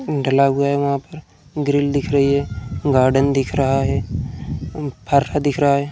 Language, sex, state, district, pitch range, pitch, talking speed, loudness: Hindi, male, Uttar Pradesh, Muzaffarnagar, 135-145 Hz, 140 Hz, 170 wpm, -19 LUFS